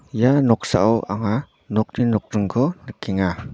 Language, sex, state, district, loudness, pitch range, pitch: Garo, male, Meghalaya, North Garo Hills, -20 LUFS, 105-130 Hz, 115 Hz